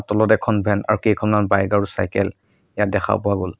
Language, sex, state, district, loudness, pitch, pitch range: Assamese, male, Assam, Sonitpur, -19 LUFS, 105 Hz, 100-105 Hz